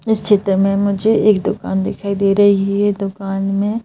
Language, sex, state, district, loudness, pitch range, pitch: Hindi, male, Madhya Pradesh, Bhopal, -16 LUFS, 195-205 Hz, 200 Hz